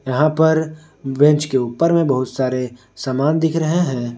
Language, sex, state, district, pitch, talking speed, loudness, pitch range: Hindi, male, Jharkhand, Ranchi, 145 Hz, 170 wpm, -17 LUFS, 130-160 Hz